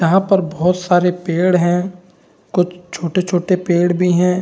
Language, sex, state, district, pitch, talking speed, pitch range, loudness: Hindi, male, Bihar, Saran, 180 Hz, 150 wpm, 175-180 Hz, -16 LUFS